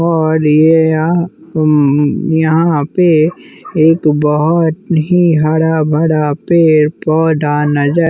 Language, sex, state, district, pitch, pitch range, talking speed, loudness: Hindi, male, Bihar, West Champaran, 160 Hz, 150-165 Hz, 105 wpm, -12 LUFS